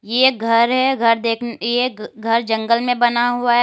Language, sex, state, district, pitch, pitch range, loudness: Hindi, female, Uttar Pradesh, Lalitpur, 235 Hz, 230-245 Hz, -17 LUFS